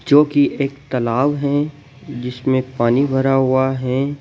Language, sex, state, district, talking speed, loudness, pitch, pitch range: Hindi, male, Madhya Pradesh, Bhopal, 140 wpm, -18 LUFS, 135 Hz, 130-145 Hz